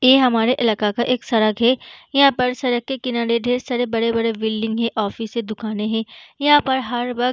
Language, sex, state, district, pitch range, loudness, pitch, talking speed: Hindi, female, Bihar, Gaya, 225-250 Hz, -19 LUFS, 240 Hz, 215 wpm